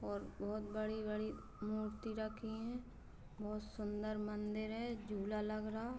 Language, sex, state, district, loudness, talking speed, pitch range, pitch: Hindi, female, Uttar Pradesh, Varanasi, -44 LUFS, 130 wpm, 210-220 Hz, 215 Hz